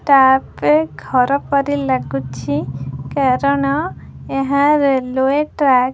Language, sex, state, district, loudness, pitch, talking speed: Odia, female, Odisha, Khordha, -17 LUFS, 265 Hz, 90 wpm